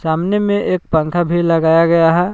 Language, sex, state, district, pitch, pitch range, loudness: Hindi, male, Jharkhand, Palamu, 170 Hz, 165-180 Hz, -14 LUFS